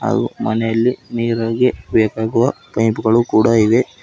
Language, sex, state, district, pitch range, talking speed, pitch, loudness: Kannada, male, Karnataka, Bidar, 110-120 Hz, 120 wpm, 115 Hz, -16 LUFS